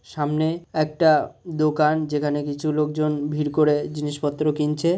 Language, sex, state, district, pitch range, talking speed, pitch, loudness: Bengali, male, West Bengal, North 24 Parganas, 150-155 Hz, 120 wpm, 150 Hz, -22 LUFS